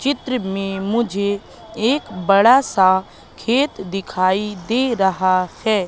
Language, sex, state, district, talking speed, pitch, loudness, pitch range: Hindi, female, Madhya Pradesh, Katni, 110 wpm, 200 Hz, -18 LUFS, 190-240 Hz